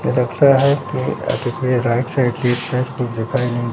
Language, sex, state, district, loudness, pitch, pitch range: Hindi, male, Bihar, Katihar, -18 LUFS, 125 Hz, 120-130 Hz